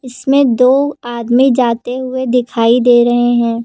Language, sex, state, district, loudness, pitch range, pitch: Hindi, female, Uttar Pradesh, Lucknow, -12 LUFS, 240-260 Hz, 245 Hz